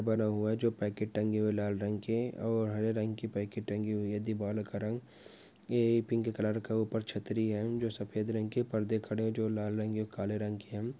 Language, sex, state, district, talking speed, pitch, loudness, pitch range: Hindi, male, West Bengal, Dakshin Dinajpur, 220 wpm, 110 Hz, -34 LUFS, 105-115 Hz